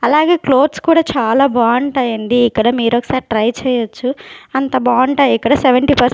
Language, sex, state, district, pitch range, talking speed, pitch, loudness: Telugu, female, Andhra Pradesh, Sri Satya Sai, 240-280 Hz, 125 wpm, 255 Hz, -14 LUFS